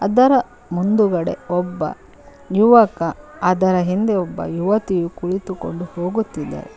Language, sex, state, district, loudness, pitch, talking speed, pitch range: Kannada, female, Karnataka, Koppal, -19 LUFS, 185 Hz, 90 wpm, 175-215 Hz